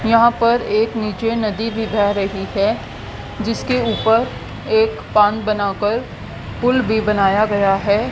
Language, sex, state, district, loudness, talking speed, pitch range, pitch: Hindi, female, Haryana, Rohtak, -17 LUFS, 140 wpm, 205-230 Hz, 220 Hz